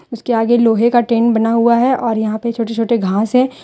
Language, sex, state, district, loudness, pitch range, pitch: Hindi, female, Jharkhand, Deoghar, -14 LUFS, 225-240 Hz, 230 Hz